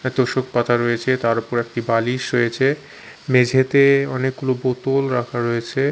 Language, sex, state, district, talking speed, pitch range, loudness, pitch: Bengali, male, Chhattisgarh, Raipur, 140 wpm, 120-130 Hz, -19 LUFS, 130 Hz